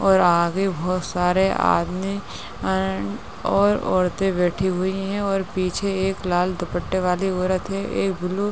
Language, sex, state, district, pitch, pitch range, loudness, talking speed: Hindi, female, Uttar Pradesh, Ghazipur, 185 Hz, 175-195 Hz, -22 LUFS, 155 wpm